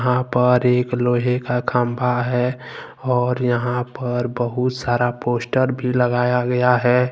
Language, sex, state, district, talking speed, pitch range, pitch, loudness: Hindi, male, Jharkhand, Ranchi, 145 wpm, 120-125 Hz, 125 Hz, -19 LUFS